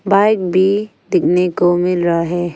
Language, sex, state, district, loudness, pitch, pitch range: Hindi, female, Arunachal Pradesh, Longding, -15 LUFS, 180 Hz, 175-200 Hz